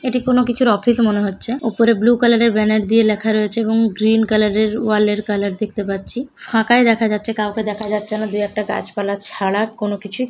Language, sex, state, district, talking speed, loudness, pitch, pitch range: Bengali, male, West Bengal, Jalpaiguri, 205 wpm, -17 LUFS, 215 Hz, 210-230 Hz